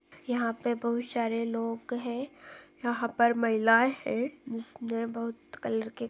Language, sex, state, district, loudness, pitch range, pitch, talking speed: Hindi, female, Chhattisgarh, Balrampur, -30 LUFS, 230-245 Hz, 235 Hz, 145 wpm